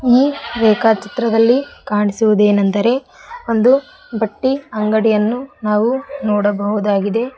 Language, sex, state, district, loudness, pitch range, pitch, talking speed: Kannada, female, Karnataka, Koppal, -16 LUFS, 210-255 Hz, 225 Hz, 65 wpm